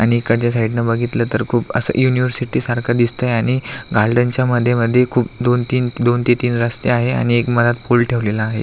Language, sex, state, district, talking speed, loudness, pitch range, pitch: Marathi, male, Maharashtra, Aurangabad, 195 wpm, -16 LUFS, 115-125 Hz, 120 Hz